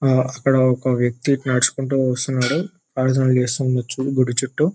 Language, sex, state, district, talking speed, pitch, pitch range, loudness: Telugu, male, Telangana, Nalgonda, 115 wpm, 130 Hz, 125-135 Hz, -19 LUFS